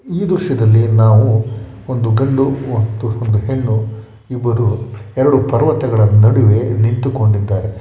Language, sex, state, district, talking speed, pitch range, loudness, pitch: Kannada, male, Karnataka, Shimoga, 100 wpm, 110-130 Hz, -14 LUFS, 115 Hz